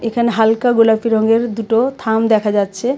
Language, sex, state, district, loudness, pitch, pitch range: Bengali, female, Tripura, West Tripura, -15 LUFS, 225 Hz, 220-235 Hz